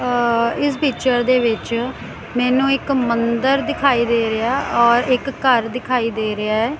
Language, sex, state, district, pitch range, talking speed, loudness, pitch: Punjabi, female, Punjab, Kapurthala, 235-265 Hz, 160 wpm, -18 LUFS, 245 Hz